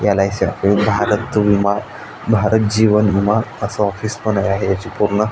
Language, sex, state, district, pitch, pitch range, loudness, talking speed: Marathi, male, Maharashtra, Aurangabad, 105 Hz, 100-110 Hz, -17 LUFS, 160 wpm